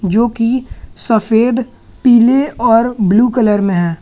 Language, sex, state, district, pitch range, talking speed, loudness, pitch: Hindi, male, Jharkhand, Garhwa, 210-245 Hz, 120 wpm, -13 LUFS, 230 Hz